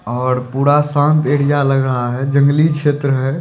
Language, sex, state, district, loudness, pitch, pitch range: Hindi, male, Bihar, Kishanganj, -15 LUFS, 140 Hz, 130-145 Hz